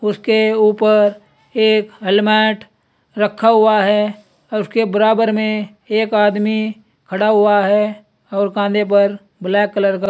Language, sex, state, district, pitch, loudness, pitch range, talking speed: Hindi, male, Uttar Pradesh, Saharanpur, 210 Hz, -15 LUFS, 205-215 Hz, 130 wpm